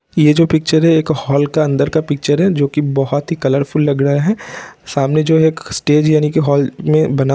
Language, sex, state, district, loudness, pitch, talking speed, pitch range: Hindi, male, Bihar, Vaishali, -14 LUFS, 150 Hz, 230 wpm, 140-160 Hz